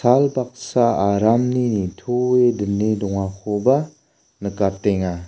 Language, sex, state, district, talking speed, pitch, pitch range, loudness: Garo, male, Meghalaya, South Garo Hills, 70 wpm, 110 Hz, 100-125 Hz, -19 LUFS